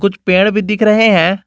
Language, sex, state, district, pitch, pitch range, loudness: Hindi, male, Jharkhand, Garhwa, 205 Hz, 195-215 Hz, -11 LUFS